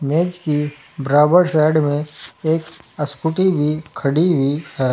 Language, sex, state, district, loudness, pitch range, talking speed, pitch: Hindi, male, Uttar Pradesh, Saharanpur, -18 LUFS, 145-160 Hz, 135 wpm, 150 Hz